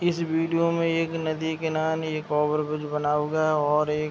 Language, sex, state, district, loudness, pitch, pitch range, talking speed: Hindi, male, Bihar, Saharsa, -25 LUFS, 155 Hz, 150-165 Hz, 220 wpm